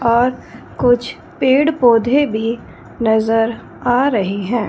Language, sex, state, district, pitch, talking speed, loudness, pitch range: Hindi, female, Punjab, Fazilka, 235 Hz, 90 wpm, -16 LUFS, 225-255 Hz